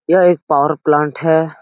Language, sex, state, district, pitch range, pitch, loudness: Hindi, male, Bihar, Jahanabad, 150-165 Hz, 160 Hz, -14 LUFS